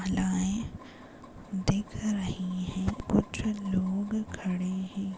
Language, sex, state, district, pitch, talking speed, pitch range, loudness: Hindi, female, Maharashtra, Sindhudurg, 195 Hz, 105 wpm, 185-210 Hz, -31 LUFS